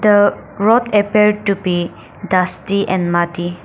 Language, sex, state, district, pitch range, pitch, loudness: English, female, Nagaland, Dimapur, 180-210 Hz, 200 Hz, -16 LUFS